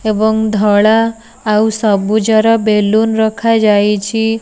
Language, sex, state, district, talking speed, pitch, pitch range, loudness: Odia, female, Odisha, Nuapada, 80 wpm, 220 Hz, 210-225 Hz, -12 LUFS